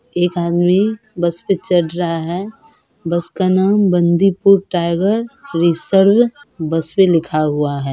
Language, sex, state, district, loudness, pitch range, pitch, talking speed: Hindi, female, Bihar, Purnia, -16 LUFS, 170-195 Hz, 180 Hz, 130 wpm